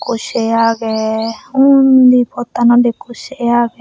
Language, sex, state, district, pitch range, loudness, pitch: Chakma, female, Tripura, Unakoti, 230-250 Hz, -12 LUFS, 240 Hz